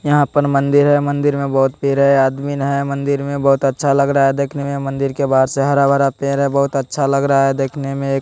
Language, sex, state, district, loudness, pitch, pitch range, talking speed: Hindi, male, Bihar, West Champaran, -16 LUFS, 140 Hz, 135-140 Hz, 250 wpm